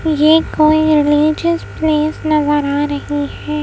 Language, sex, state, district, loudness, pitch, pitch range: Hindi, female, Madhya Pradesh, Bhopal, -14 LUFS, 305 Hz, 295-310 Hz